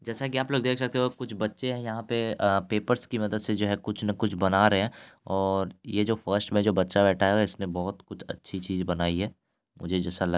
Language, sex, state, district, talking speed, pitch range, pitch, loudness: Hindi, male, Bihar, Purnia, 235 wpm, 95-115 Hz, 105 Hz, -27 LUFS